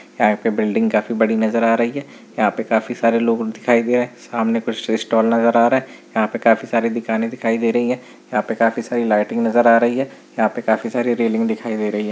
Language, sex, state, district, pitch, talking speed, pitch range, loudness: Hindi, male, Chhattisgarh, Bilaspur, 115 Hz, 260 wpm, 110-120 Hz, -18 LUFS